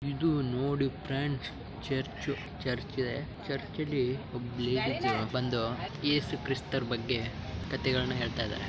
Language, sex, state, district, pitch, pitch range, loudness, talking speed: Kannada, male, Karnataka, Bijapur, 130 Hz, 115-140 Hz, -33 LUFS, 115 wpm